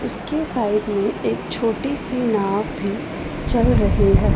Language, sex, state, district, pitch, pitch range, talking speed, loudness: Hindi, female, Punjab, Pathankot, 225 Hz, 210-260 Hz, 150 wpm, -21 LUFS